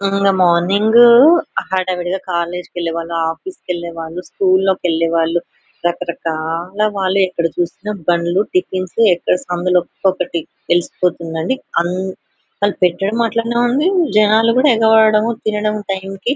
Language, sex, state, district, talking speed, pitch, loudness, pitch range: Telugu, female, Telangana, Nalgonda, 95 wpm, 185 Hz, -16 LUFS, 175-215 Hz